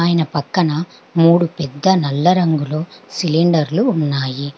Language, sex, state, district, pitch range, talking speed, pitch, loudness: Telugu, female, Telangana, Hyderabad, 145-175 Hz, 105 wpm, 160 Hz, -16 LUFS